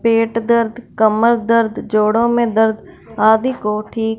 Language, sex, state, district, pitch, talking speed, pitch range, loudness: Hindi, female, Punjab, Fazilka, 225 Hz, 145 wpm, 220-235 Hz, -15 LUFS